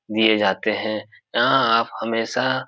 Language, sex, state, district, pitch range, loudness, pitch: Hindi, male, Bihar, Supaul, 110-115 Hz, -20 LUFS, 110 Hz